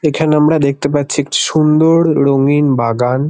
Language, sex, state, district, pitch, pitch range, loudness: Bengali, male, West Bengal, Kolkata, 145 Hz, 140-155 Hz, -12 LUFS